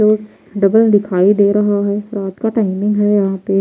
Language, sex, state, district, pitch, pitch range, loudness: Hindi, female, Bihar, Patna, 205 Hz, 195-210 Hz, -14 LUFS